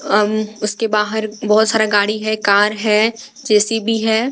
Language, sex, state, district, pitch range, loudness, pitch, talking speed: Hindi, female, Jharkhand, Garhwa, 210-225 Hz, -16 LUFS, 215 Hz, 155 wpm